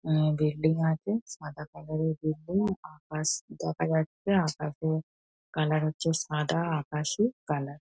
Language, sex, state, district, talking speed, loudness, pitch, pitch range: Bengali, female, West Bengal, North 24 Parganas, 140 wpm, -30 LUFS, 155 Hz, 150-165 Hz